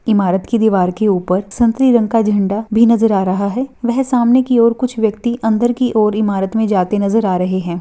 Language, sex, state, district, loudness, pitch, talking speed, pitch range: Hindi, female, Maharashtra, Nagpur, -14 LUFS, 220 Hz, 230 wpm, 195-235 Hz